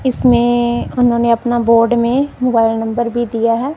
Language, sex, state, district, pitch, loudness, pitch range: Hindi, male, Punjab, Kapurthala, 240 Hz, -14 LUFS, 230-245 Hz